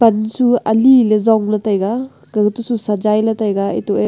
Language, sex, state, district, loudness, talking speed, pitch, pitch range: Wancho, female, Arunachal Pradesh, Longding, -15 LUFS, 130 wpm, 215 Hz, 210-235 Hz